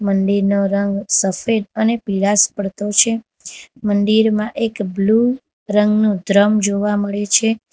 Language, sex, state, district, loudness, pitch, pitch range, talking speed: Gujarati, female, Gujarat, Valsad, -16 LUFS, 205 Hz, 200-220 Hz, 115 wpm